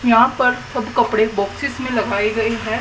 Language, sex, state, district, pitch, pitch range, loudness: Hindi, female, Haryana, Jhajjar, 230 Hz, 220-250 Hz, -18 LUFS